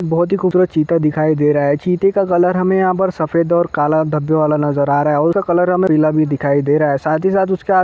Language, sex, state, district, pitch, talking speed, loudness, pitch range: Hindi, male, Jharkhand, Jamtara, 160 Hz, 285 wpm, -15 LUFS, 150-185 Hz